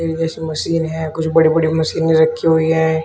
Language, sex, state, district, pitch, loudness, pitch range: Hindi, male, Uttar Pradesh, Shamli, 160 Hz, -16 LUFS, 160-165 Hz